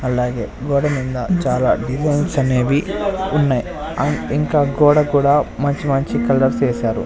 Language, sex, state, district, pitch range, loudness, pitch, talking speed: Telugu, male, Andhra Pradesh, Sri Satya Sai, 130-150 Hz, -18 LUFS, 140 Hz, 120 wpm